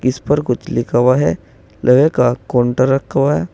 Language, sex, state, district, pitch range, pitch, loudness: Hindi, male, Uttar Pradesh, Saharanpur, 125-140 Hz, 130 Hz, -15 LUFS